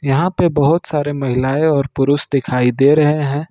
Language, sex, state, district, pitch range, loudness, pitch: Hindi, male, Jharkhand, Ranchi, 135-155 Hz, -15 LUFS, 145 Hz